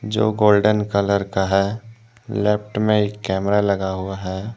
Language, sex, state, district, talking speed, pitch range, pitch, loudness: Hindi, male, Jharkhand, Deoghar, 155 wpm, 95-110 Hz, 105 Hz, -20 LUFS